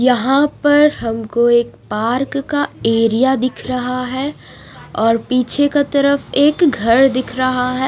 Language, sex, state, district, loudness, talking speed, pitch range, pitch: Hindi, female, Punjab, Fazilka, -15 LUFS, 145 wpm, 235-280 Hz, 255 Hz